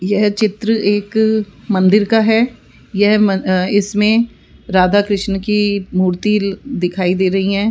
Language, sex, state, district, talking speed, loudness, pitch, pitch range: Hindi, female, Rajasthan, Jaipur, 125 wpm, -15 LUFS, 205 Hz, 190-215 Hz